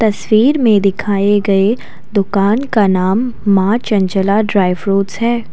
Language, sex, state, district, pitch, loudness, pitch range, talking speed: Hindi, female, Assam, Kamrup Metropolitan, 205 Hz, -14 LUFS, 195-225 Hz, 130 wpm